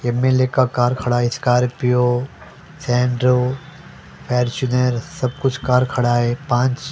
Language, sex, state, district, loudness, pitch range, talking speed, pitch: Hindi, male, Delhi, New Delhi, -18 LUFS, 120-130 Hz, 130 wpm, 125 Hz